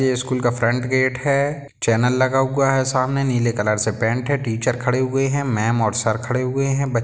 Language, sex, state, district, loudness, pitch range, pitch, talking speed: Hindi, male, Bihar, Sitamarhi, -20 LUFS, 120-135 Hz, 130 Hz, 230 wpm